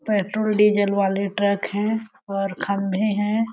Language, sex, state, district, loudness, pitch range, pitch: Hindi, female, Chhattisgarh, Sarguja, -22 LUFS, 200-215 Hz, 205 Hz